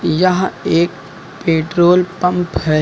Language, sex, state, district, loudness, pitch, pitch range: Hindi, male, Uttar Pradesh, Lucknow, -15 LUFS, 175 Hz, 165-180 Hz